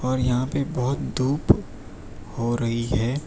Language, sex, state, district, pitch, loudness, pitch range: Hindi, male, Gujarat, Valsad, 125 Hz, -24 LUFS, 115-130 Hz